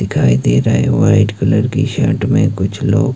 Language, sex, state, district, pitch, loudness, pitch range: Hindi, male, Himachal Pradesh, Shimla, 110 Hz, -14 LUFS, 95-135 Hz